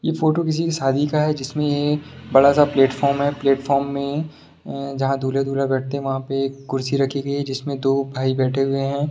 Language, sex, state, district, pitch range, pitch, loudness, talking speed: Hindi, male, Bihar, Sitamarhi, 135-145 Hz, 140 Hz, -20 LUFS, 200 wpm